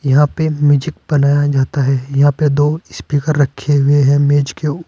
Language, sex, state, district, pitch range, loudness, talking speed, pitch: Hindi, male, Uttar Pradesh, Saharanpur, 140-150 Hz, -14 LUFS, 210 wpm, 145 Hz